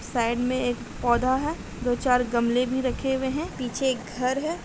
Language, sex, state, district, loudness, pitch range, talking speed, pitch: Hindi, female, Bihar, Gopalganj, -26 LUFS, 245-265 Hz, 205 wpm, 255 Hz